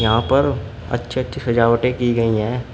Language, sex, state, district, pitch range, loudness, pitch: Hindi, male, Uttar Pradesh, Shamli, 115-125 Hz, -19 LUFS, 120 Hz